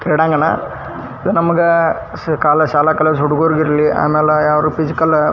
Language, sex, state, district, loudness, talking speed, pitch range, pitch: Kannada, male, Karnataka, Dharwad, -14 LUFS, 125 wpm, 150-160 Hz, 155 Hz